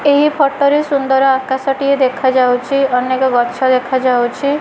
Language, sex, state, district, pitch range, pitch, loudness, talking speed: Odia, female, Odisha, Malkangiri, 255-280 Hz, 265 Hz, -14 LUFS, 145 wpm